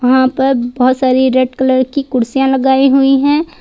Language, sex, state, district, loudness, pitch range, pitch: Hindi, female, Jharkhand, Ranchi, -12 LUFS, 255-270 Hz, 260 Hz